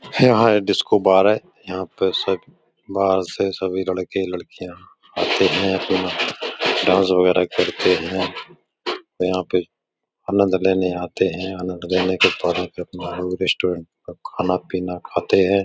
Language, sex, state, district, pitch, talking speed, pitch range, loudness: Hindi, male, Uttar Pradesh, Etah, 95 Hz, 130 wpm, 90-95 Hz, -20 LUFS